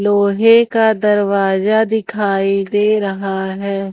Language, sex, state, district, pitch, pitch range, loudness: Hindi, female, Madhya Pradesh, Umaria, 205 Hz, 195-215 Hz, -15 LUFS